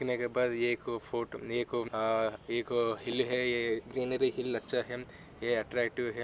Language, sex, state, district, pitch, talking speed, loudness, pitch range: Hindi, male, Maharashtra, Solapur, 120 Hz, 175 wpm, -33 LUFS, 115-125 Hz